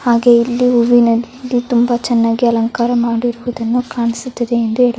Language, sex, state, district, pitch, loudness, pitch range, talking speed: Kannada, female, Karnataka, Dharwad, 240 Hz, -14 LUFS, 235-245 Hz, 130 wpm